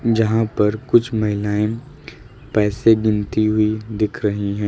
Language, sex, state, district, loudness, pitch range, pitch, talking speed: Hindi, male, Uttar Pradesh, Lucknow, -19 LUFS, 105-115 Hz, 110 Hz, 130 wpm